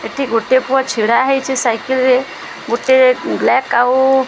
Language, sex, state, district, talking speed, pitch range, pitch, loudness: Odia, female, Odisha, Sambalpur, 140 wpm, 240-265 Hz, 260 Hz, -14 LUFS